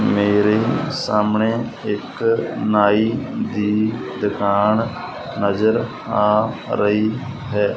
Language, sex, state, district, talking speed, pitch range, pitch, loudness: Punjabi, male, Punjab, Fazilka, 75 wpm, 105-115 Hz, 105 Hz, -19 LUFS